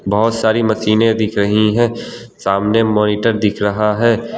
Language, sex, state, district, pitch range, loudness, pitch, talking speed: Hindi, male, Gujarat, Valsad, 105-115 Hz, -15 LUFS, 110 Hz, 150 wpm